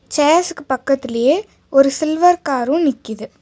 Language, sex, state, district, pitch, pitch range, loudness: Tamil, female, Tamil Nadu, Nilgiris, 280 Hz, 265-325 Hz, -16 LUFS